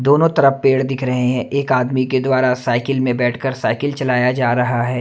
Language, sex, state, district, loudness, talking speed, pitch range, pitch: Hindi, male, Chhattisgarh, Raipur, -17 LUFS, 215 wpm, 125-135 Hz, 130 Hz